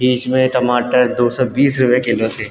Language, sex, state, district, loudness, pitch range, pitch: Hindi, male, Uttarakhand, Tehri Garhwal, -15 LUFS, 120-130 Hz, 125 Hz